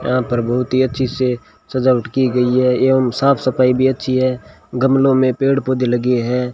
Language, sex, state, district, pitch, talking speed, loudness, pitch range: Hindi, male, Rajasthan, Bikaner, 130 Hz, 200 wpm, -16 LUFS, 125-130 Hz